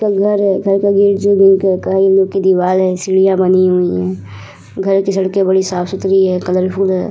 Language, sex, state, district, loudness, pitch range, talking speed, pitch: Hindi, female, Uttar Pradesh, Muzaffarnagar, -13 LUFS, 185-195 Hz, 135 wpm, 190 Hz